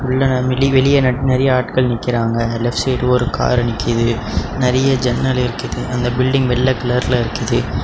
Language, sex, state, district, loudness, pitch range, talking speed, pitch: Tamil, male, Tamil Nadu, Namakkal, -16 LUFS, 120-130 Hz, 140 wpm, 125 Hz